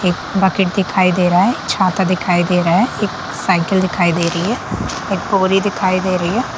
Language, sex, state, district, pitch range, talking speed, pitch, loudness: Hindi, male, Bihar, Sitamarhi, 180-195 Hz, 220 wpm, 185 Hz, -16 LUFS